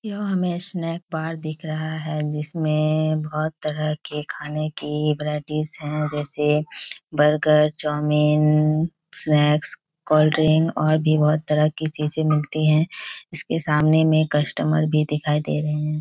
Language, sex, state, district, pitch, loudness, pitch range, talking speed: Hindi, female, Bihar, Kishanganj, 155 Hz, -21 LUFS, 150-155 Hz, 140 wpm